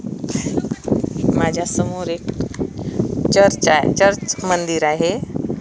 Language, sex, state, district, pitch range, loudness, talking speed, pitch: Marathi, female, Maharashtra, Washim, 155-195 Hz, -18 LUFS, 85 wpm, 175 Hz